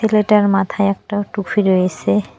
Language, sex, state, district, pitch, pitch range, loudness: Bengali, female, West Bengal, Cooch Behar, 200 Hz, 185-205 Hz, -16 LUFS